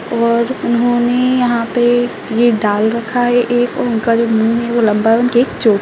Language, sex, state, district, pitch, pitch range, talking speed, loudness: Kumaoni, female, Uttarakhand, Tehri Garhwal, 235 Hz, 225-245 Hz, 195 wpm, -14 LUFS